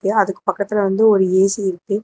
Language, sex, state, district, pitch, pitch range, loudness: Tamil, female, Tamil Nadu, Namakkal, 200 Hz, 190-210 Hz, -17 LUFS